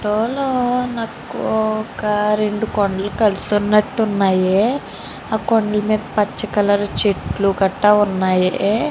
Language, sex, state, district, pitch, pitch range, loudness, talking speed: Telugu, female, Andhra Pradesh, Srikakulam, 210 Hz, 200-220 Hz, -18 LUFS, 90 wpm